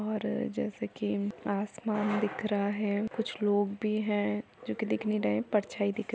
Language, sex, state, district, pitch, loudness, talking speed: Hindi, female, Uttar Pradesh, Jalaun, 205 Hz, -32 LUFS, 205 wpm